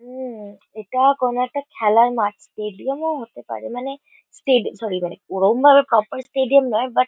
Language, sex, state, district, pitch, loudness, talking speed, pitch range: Bengali, female, West Bengal, Kolkata, 250 Hz, -19 LUFS, 195 wpm, 210-270 Hz